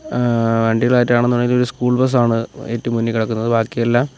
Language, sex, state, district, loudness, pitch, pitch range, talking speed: Malayalam, male, Kerala, Kollam, -17 LUFS, 120 Hz, 115-125 Hz, 200 wpm